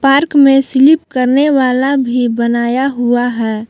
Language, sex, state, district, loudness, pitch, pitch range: Hindi, female, Jharkhand, Palamu, -12 LUFS, 260 Hz, 240-275 Hz